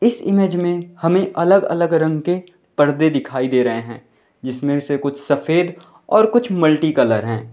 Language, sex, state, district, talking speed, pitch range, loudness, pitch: Hindi, male, Uttar Pradesh, Lalitpur, 165 wpm, 140-175 Hz, -17 LUFS, 160 Hz